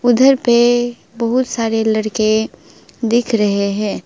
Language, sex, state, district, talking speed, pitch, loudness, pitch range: Hindi, female, West Bengal, Alipurduar, 120 wpm, 230 Hz, -15 LUFS, 215-240 Hz